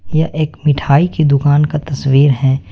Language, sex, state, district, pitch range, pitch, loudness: Hindi, male, West Bengal, Alipurduar, 140-155 Hz, 145 Hz, -13 LUFS